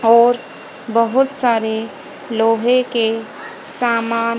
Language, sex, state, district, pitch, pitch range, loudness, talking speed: Hindi, female, Haryana, Jhajjar, 230 Hz, 225-250 Hz, -17 LUFS, 80 wpm